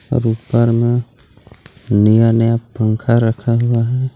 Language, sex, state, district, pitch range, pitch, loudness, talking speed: Hindi, male, Jharkhand, Garhwa, 115-120 Hz, 115 Hz, -15 LUFS, 130 wpm